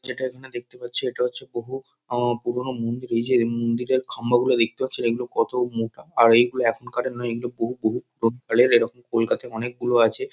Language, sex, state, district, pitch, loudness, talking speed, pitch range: Bengali, male, West Bengal, Kolkata, 120 Hz, -23 LUFS, 185 wpm, 115-125 Hz